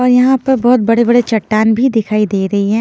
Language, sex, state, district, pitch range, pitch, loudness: Hindi, female, Himachal Pradesh, Shimla, 215-250 Hz, 230 Hz, -12 LUFS